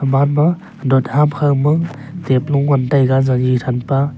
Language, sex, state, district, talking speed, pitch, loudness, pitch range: Wancho, male, Arunachal Pradesh, Longding, 160 wpm, 140 Hz, -15 LUFS, 130-150 Hz